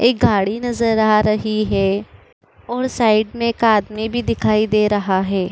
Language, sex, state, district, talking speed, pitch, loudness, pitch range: Hindi, female, Uttar Pradesh, Budaun, 175 wpm, 215 Hz, -17 LUFS, 205-230 Hz